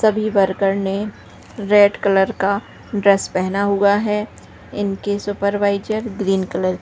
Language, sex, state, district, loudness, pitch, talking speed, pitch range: Hindi, female, Bihar, Darbhanga, -18 LUFS, 200 Hz, 140 wpm, 195-205 Hz